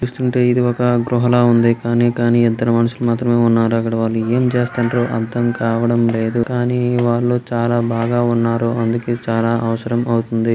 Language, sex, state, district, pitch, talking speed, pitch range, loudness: Telugu, male, Andhra Pradesh, Krishna, 120 Hz, 150 wpm, 115-120 Hz, -16 LUFS